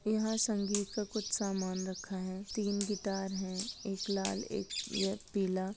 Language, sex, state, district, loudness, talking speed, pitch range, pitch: Hindi, female, Bihar, Gaya, -35 LUFS, 155 wpm, 190-210 Hz, 200 Hz